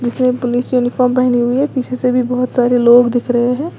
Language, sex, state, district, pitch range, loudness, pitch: Hindi, female, Uttar Pradesh, Lalitpur, 245-255 Hz, -14 LUFS, 250 Hz